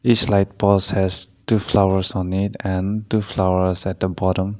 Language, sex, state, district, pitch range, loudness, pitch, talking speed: English, male, Nagaland, Dimapur, 95-100 Hz, -20 LUFS, 95 Hz, 180 wpm